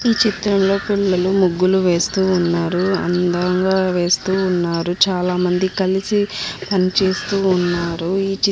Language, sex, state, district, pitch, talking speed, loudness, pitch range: Telugu, female, Andhra Pradesh, Anantapur, 185 Hz, 100 wpm, -17 LUFS, 180-195 Hz